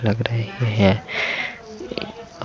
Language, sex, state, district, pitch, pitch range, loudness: Hindi, male, Uttar Pradesh, Varanasi, 110 Hz, 100-115 Hz, -22 LUFS